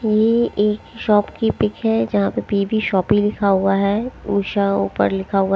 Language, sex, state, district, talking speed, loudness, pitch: Hindi, female, Himachal Pradesh, Shimla, 185 wpm, -19 LUFS, 200 Hz